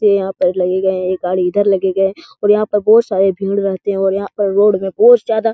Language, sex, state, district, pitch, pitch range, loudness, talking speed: Hindi, male, Bihar, Jahanabad, 195 Hz, 190-205 Hz, -14 LUFS, 280 wpm